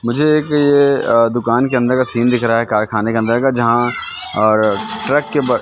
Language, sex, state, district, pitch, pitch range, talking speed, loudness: Hindi, male, Madhya Pradesh, Katni, 120 Hz, 115-135 Hz, 190 wpm, -15 LUFS